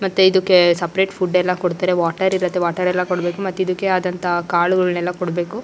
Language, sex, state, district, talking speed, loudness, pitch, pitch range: Kannada, female, Karnataka, Shimoga, 170 wpm, -18 LUFS, 180 Hz, 175-185 Hz